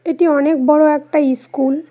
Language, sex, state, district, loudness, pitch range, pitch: Bengali, female, West Bengal, Cooch Behar, -14 LUFS, 275-310 Hz, 300 Hz